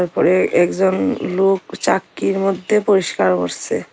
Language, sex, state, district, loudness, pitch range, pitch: Bengali, female, Tripura, Unakoti, -17 LUFS, 175-195 Hz, 185 Hz